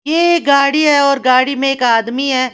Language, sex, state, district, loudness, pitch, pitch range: Hindi, female, Haryana, Charkhi Dadri, -12 LUFS, 275 Hz, 255-285 Hz